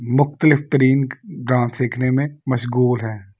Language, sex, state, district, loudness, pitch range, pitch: Hindi, male, Delhi, New Delhi, -19 LUFS, 120-140 Hz, 130 Hz